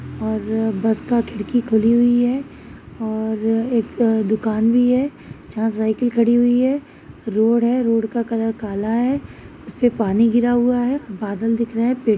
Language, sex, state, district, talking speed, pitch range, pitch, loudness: Hindi, female, Uttar Pradesh, Etah, 180 wpm, 220-245 Hz, 230 Hz, -19 LUFS